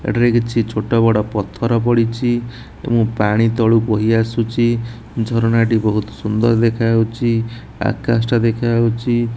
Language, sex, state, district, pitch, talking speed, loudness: Odia, male, Odisha, Nuapada, 115 Hz, 135 wpm, -17 LUFS